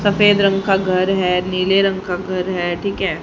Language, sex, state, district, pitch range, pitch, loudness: Hindi, female, Haryana, Charkhi Dadri, 185-195 Hz, 190 Hz, -17 LUFS